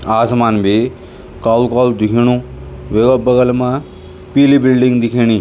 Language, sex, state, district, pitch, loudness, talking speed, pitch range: Garhwali, male, Uttarakhand, Tehri Garhwal, 120 Hz, -13 LUFS, 110 wpm, 110-125 Hz